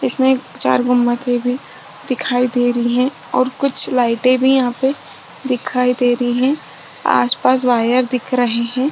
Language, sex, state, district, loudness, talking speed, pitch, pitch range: Hindi, female, Maharashtra, Chandrapur, -15 LUFS, 160 wpm, 250 Hz, 245-255 Hz